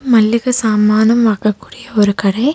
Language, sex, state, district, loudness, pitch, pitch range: Tamil, female, Tamil Nadu, Nilgiris, -13 LUFS, 220 Hz, 210-235 Hz